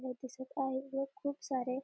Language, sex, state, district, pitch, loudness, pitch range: Marathi, female, Maharashtra, Dhule, 265 Hz, -39 LUFS, 260-275 Hz